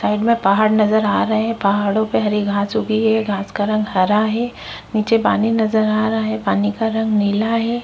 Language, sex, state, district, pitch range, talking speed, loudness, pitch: Hindi, female, Chhattisgarh, Korba, 205-220 Hz, 220 wpm, -17 LUFS, 215 Hz